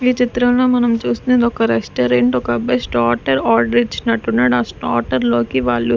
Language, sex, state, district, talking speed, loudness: Telugu, female, Andhra Pradesh, Sri Satya Sai, 170 wpm, -16 LUFS